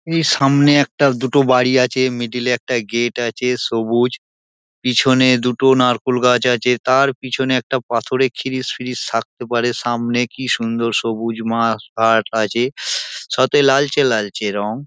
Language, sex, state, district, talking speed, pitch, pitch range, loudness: Bengali, male, West Bengal, Dakshin Dinajpur, 140 wpm, 125 Hz, 115-130 Hz, -17 LUFS